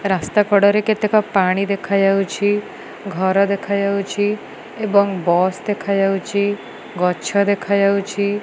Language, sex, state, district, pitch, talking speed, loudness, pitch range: Odia, female, Odisha, Malkangiri, 200 Hz, 85 wpm, -18 LUFS, 195-205 Hz